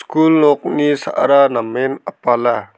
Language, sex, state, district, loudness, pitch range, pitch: Garo, male, Meghalaya, South Garo Hills, -15 LUFS, 120-145 Hz, 135 Hz